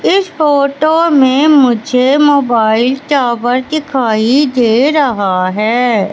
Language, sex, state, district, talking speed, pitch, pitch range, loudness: Hindi, female, Madhya Pradesh, Katni, 100 wpm, 260 Hz, 235-290 Hz, -11 LUFS